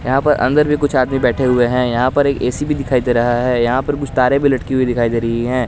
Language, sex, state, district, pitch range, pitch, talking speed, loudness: Hindi, male, Jharkhand, Garhwa, 125-140 Hz, 130 Hz, 305 wpm, -15 LUFS